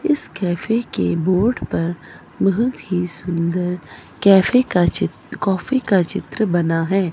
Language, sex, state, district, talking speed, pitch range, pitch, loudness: Hindi, female, Himachal Pradesh, Shimla, 135 wpm, 170-215 Hz, 185 Hz, -19 LUFS